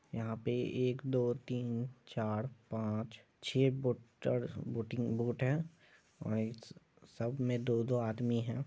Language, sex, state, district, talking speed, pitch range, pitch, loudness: Hindi, male, Bihar, Madhepura, 120 wpm, 115-125 Hz, 120 Hz, -37 LUFS